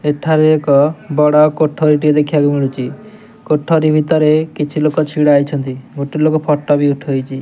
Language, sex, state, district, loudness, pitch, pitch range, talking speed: Odia, male, Odisha, Nuapada, -14 LUFS, 150 Hz, 145-155 Hz, 145 wpm